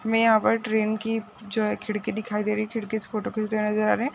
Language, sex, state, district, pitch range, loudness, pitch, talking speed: Hindi, female, Rajasthan, Churu, 215-225 Hz, -25 LUFS, 215 Hz, 290 wpm